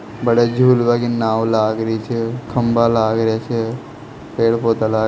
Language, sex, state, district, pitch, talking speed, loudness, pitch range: Hindi, male, Rajasthan, Nagaur, 115 Hz, 175 wpm, -17 LUFS, 110-120 Hz